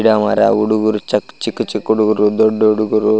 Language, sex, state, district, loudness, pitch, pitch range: Kannada, male, Karnataka, Raichur, -15 LUFS, 110 Hz, 105-110 Hz